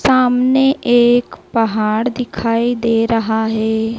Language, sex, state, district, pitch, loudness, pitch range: Hindi, female, Madhya Pradesh, Dhar, 230 Hz, -15 LUFS, 220-250 Hz